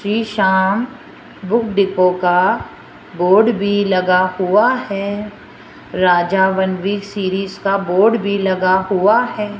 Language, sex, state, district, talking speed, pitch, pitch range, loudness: Hindi, female, Rajasthan, Jaipur, 120 wpm, 195 Hz, 185-210 Hz, -16 LUFS